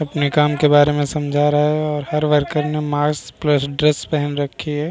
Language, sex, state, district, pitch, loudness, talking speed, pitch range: Hindi, male, Bihar, Vaishali, 150 Hz, -18 LUFS, 220 wpm, 145-150 Hz